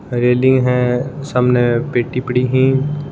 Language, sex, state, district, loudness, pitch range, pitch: Hindi, male, Rajasthan, Churu, -15 LUFS, 125-135 Hz, 125 Hz